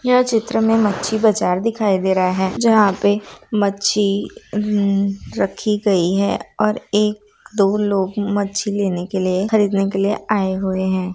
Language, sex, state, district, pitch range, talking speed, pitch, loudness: Hindi, female, Bihar, Darbhanga, 195-210 Hz, 155 wpm, 205 Hz, -18 LUFS